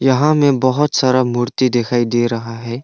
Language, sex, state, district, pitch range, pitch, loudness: Hindi, male, Arunachal Pradesh, Longding, 120-130 Hz, 130 Hz, -16 LUFS